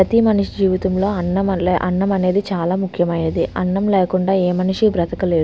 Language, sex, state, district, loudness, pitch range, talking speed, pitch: Telugu, female, Andhra Pradesh, Visakhapatnam, -18 LUFS, 180-195 Hz, 165 wpm, 185 Hz